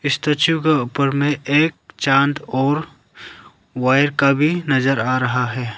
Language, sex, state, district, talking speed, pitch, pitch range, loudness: Hindi, male, Arunachal Pradesh, Lower Dibang Valley, 145 wpm, 140 Hz, 130-150 Hz, -18 LUFS